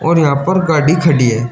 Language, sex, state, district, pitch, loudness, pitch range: Hindi, male, Uttar Pradesh, Shamli, 155 Hz, -12 LUFS, 140-170 Hz